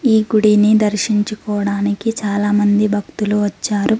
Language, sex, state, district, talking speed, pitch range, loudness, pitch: Telugu, female, Telangana, Mahabubabad, 90 wpm, 205-215 Hz, -16 LUFS, 210 Hz